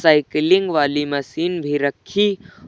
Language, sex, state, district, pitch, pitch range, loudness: Hindi, male, Uttar Pradesh, Lucknow, 155 Hz, 145-180 Hz, -19 LUFS